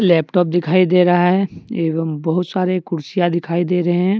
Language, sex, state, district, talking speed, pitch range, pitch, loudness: Hindi, male, Jharkhand, Deoghar, 185 wpm, 170-185 Hz, 175 Hz, -17 LUFS